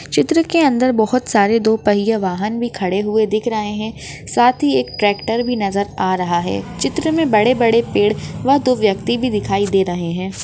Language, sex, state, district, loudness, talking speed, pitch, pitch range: Hindi, female, Maharashtra, Chandrapur, -17 LUFS, 215 wpm, 220 Hz, 200-245 Hz